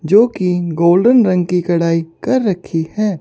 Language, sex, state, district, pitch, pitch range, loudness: Hindi, female, Chandigarh, Chandigarh, 180 Hz, 170-210 Hz, -14 LUFS